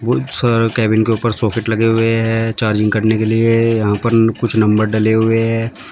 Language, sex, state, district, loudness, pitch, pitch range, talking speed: Hindi, male, Uttar Pradesh, Shamli, -14 LUFS, 115 Hz, 110-115 Hz, 205 wpm